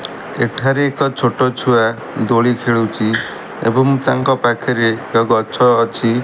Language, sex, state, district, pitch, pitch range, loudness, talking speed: Odia, male, Odisha, Malkangiri, 120 Hz, 115-130 Hz, -15 LUFS, 115 wpm